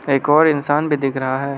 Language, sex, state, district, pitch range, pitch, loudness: Hindi, male, Arunachal Pradesh, Lower Dibang Valley, 135-150 Hz, 140 Hz, -17 LUFS